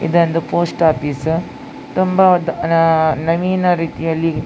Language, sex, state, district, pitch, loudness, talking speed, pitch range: Kannada, female, Karnataka, Dakshina Kannada, 165 Hz, -16 LUFS, 95 wpm, 160-180 Hz